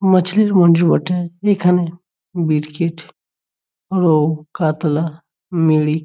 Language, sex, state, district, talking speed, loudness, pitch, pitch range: Bengali, male, West Bengal, Jhargram, 80 wpm, -17 LUFS, 170 Hz, 155-180 Hz